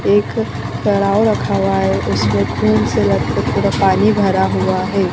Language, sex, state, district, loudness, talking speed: Hindi, female, Jharkhand, Jamtara, -15 LUFS, 165 wpm